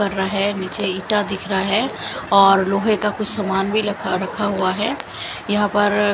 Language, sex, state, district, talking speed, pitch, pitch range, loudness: Hindi, female, Chandigarh, Chandigarh, 195 wpm, 200 Hz, 195-210 Hz, -19 LUFS